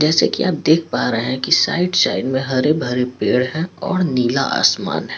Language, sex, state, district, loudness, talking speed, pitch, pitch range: Hindi, male, Bihar, Patna, -17 LUFS, 220 wpm, 150 Hz, 130-180 Hz